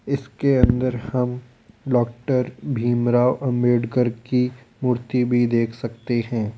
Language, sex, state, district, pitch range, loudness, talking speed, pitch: Hindi, male, Rajasthan, Jaipur, 120-125 Hz, -21 LUFS, 110 wpm, 125 Hz